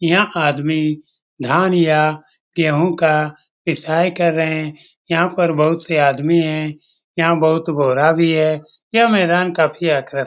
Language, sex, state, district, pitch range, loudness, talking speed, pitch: Hindi, male, Bihar, Lakhisarai, 155-170 Hz, -16 LUFS, 145 wpm, 160 Hz